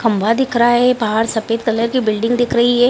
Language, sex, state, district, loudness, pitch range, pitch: Hindi, female, Bihar, Gaya, -15 LUFS, 225-245 Hz, 235 Hz